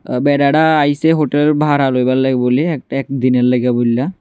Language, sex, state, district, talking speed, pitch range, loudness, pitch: Bengali, male, Tripura, West Tripura, 155 wpm, 125-150 Hz, -14 LUFS, 135 Hz